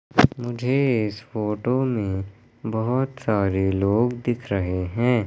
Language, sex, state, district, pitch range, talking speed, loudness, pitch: Hindi, male, Madhya Pradesh, Katni, 100-125 Hz, 100 wpm, -23 LUFS, 115 Hz